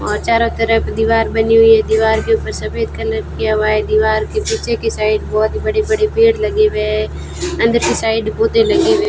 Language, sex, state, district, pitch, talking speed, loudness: Hindi, female, Rajasthan, Bikaner, 225 Hz, 220 wpm, -15 LUFS